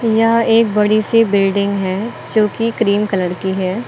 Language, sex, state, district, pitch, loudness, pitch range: Hindi, female, Uttar Pradesh, Lucknow, 210 Hz, -15 LUFS, 195-230 Hz